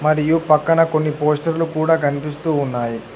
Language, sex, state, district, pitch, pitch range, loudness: Telugu, male, Telangana, Hyderabad, 155 Hz, 150-165 Hz, -18 LUFS